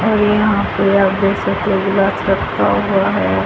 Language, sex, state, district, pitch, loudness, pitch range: Hindi, female, Haryana, Charkhi Dadri, 195 Hz, -15 LUFS, 195-210 Hz